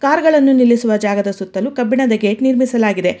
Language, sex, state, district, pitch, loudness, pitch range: Kannada, female, Karnataka, Bangalore, 235 Hz, -14 LUFS, 205-265 Hz